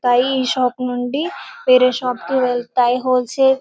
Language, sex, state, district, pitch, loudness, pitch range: Telugu, female, Telangana, Karimnagar, 255 Hz, -17 LUFS, 245-260 Hz